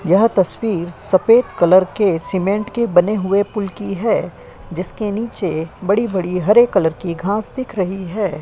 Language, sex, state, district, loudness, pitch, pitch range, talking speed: Hindi, female, Uttar Pradesh, Jyotiba Phule Nagar, -17 LUFS, 195 Hz, 180-215 Hz, 155 wpm